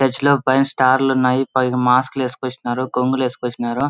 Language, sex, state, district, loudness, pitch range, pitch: Telugu, male, Andhra Pradesh, Anantapur, -18 LUFS, 125-135 Hz, 130 Hz